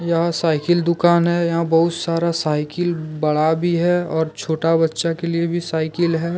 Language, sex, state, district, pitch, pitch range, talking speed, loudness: Hindi, male, Jharkhand, Deoghar, 170 Hz, 160-170 Hz, 180 wpm, -19 LUFS